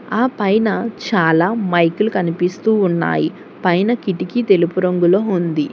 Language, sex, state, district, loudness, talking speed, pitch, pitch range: Telugu, female, Telangana, Hyderabad, -17 LUFS, 105 wpm, 190 Hz, 175-215 Hz